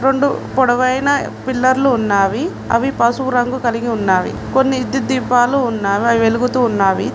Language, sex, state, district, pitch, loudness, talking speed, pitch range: Telugu, female, Telangana, Mahabubabad, 245 Hz, -16 LUFS, 135 wpm, 230-260 Hz